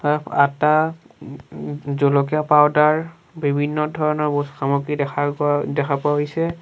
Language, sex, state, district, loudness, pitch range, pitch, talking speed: Assamese, male, Assam, Sonitpur, -20 LUFS, 145-150 Hz, 145 Hz, 125 wpm